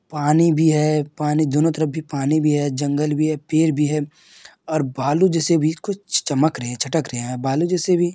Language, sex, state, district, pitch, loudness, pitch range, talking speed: Hindi, male, Bihar, Madhepura, 155 Hz, -20 LUFS, 145-160 Hz, 220 wpm